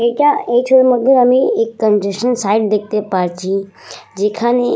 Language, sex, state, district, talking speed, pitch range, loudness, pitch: Bengali, female, West Bengal, Purulia, 140 wpm, 205-245 Hz, -14 LUFS, 225 Hz